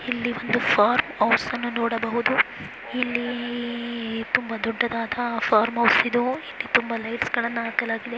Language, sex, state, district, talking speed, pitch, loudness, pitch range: Kannada, female, Karnataka, Chamarajanagar, 115 wpm, 235 Hz, -23 LUFS, 230-240 Hz